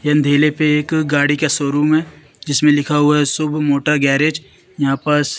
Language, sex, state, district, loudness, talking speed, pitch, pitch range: Hindi, female, Madhya Pradesh, Katni, -15 LUFS, 165 wpm, 150 Hz, 145-150 Hz